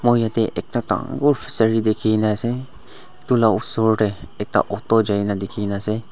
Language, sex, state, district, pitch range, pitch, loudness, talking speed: Nagamese, male, Nagaland, Dimapur, 105-115 Hz, 110 Hz, -19 LUFS, 155 wpm